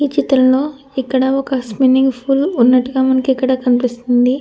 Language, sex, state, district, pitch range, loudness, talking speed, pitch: Telugu, female, Andhra Pradesh, Anantapur, 255-270 Hz, -14 LUFS, 135 wpm, 260 Hz